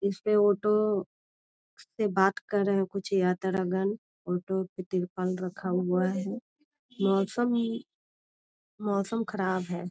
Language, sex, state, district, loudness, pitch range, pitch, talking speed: Hindi, female, Bihar, Jamui, -29 LUFS, 185-210 Hz, 195 Hz, 120 wpm